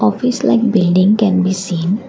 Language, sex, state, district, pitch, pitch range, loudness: English, female, Assam, Kamrup Metropolitan, 190 Hz, 180-220 Hz, -14 LUFS